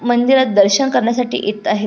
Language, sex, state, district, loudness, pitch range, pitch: Marathi, female, Maharashtra, Pune, -14 LUFS, 210-255 Hz, 240 Hz